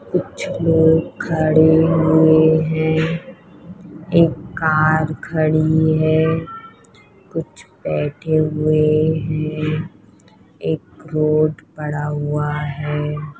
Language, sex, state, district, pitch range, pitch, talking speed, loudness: Hindi, female, Uttar Pradesh, Deoria, 155-160 Hz, 155 Hz, 80 wpm, -18 LUFS